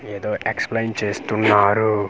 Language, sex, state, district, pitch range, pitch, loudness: Telugu, male, Andhra Pradesh, Manyam, 105-110 Hz, 105 Hz, -20 LUFS